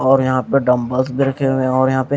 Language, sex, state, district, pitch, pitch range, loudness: Hindi, male, Punjab, Kapurthala, 130 Hz, 130-135 Hz, -16 LUFS